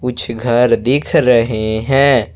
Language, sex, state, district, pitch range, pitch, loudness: Hindi, male, Jharkhand, Ranchi, 115-130 Hz, 120 Hz, -14 LUFS